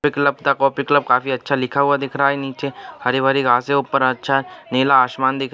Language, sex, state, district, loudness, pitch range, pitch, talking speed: Hindi, male, Andhra Pradesh, Anantapur, -18 LUFS, 130-140 Hz, 135 Hz, 225 wpm